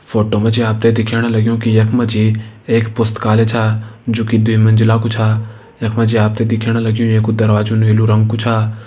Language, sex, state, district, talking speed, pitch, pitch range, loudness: Hindi, male, Uttarakhand, Uttarkashi, 225 wpm, 110 Hz, 110-115 Hz, -14 LUFS